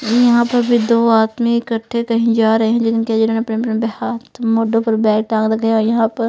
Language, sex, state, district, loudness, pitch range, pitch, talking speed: Hindi, female, Punjab, Fazilka, -15 LUFS, 225-235 Hz, 225 Hz, 240 wpm